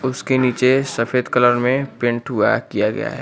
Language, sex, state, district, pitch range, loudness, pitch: Hindi, male, Uttar Pradesh, Lucknow, 120-130 Hz, -18 LUFS, 125 Hz